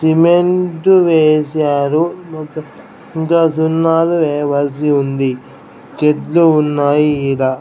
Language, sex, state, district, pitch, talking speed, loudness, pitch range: Telugu, male, Andhra Pradesh, Krishna, 155 Hz, 70 wpm, -13 LUFS, 145-165 Hz